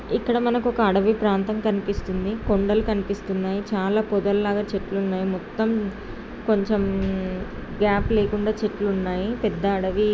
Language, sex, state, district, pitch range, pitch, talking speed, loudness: Telugu, female, Andhra Pradesh, Srikakulam, 195-215 Hz, 205 Hz, 120 wpm, -23 LUFS